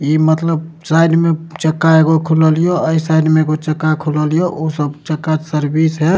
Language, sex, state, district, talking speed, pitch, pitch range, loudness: Maithili, male, Bihar, Supaul, 185 wpm, 160 Hz, 155-160 Hz, -14 LUFS